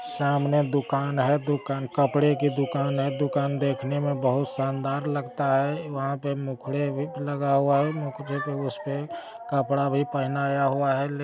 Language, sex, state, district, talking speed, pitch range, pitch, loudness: Hindi, male, Bihar, Araria, 165 wpm, 140-145 Hz, 140 Hz, -26 LUFS